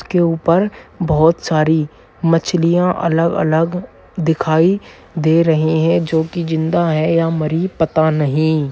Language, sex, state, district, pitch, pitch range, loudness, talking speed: Hindi, male, Bihar, Purnia, 165 Hz, 160-170 Hz, -16 LUFS, 125 wpm